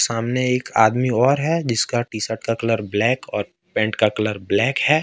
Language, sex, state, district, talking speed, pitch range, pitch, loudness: Hindi, male, Jharkhand, Ranchi, 190 wpm, 110-130 Hz, 115 Hz, -20 LUFS